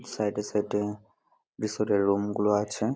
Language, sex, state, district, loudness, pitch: Bengali, male, West Bengal, Jalpaiguri, -28 LUFS, 105 Hz